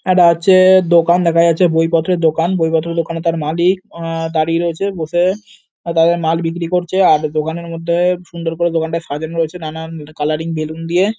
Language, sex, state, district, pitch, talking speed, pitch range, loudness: Bengali, male, West Bengal, North 24 Parganas, 165 Hz, 165 wpm, 160-175 Hz, -15 LUFS